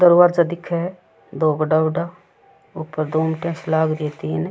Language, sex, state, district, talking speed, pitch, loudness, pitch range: Rajasthani, female, Rajasthan, Churu, 160 wpm, 160 Hz, -20 LUFS, 155-170 Hz